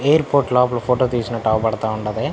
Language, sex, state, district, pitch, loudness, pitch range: Telugu, male, Andhra Pradesh, Anantapur, 120 Hz, -19 LUFS, 110-135 Hz